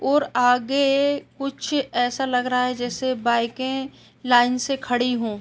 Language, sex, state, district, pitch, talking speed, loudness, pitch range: Hindi, female, Uttar Pradesh, Etah, 250 Hz, 145 wpm, -22 LUFS, 245-275 Hz